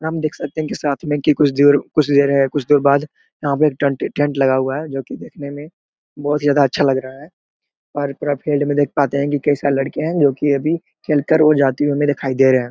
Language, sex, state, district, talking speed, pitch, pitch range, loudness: Hindi, male, Chhattisgarh, Korba, 255 wpm, 145 Hz, 140-150 Hz, -17 LUFS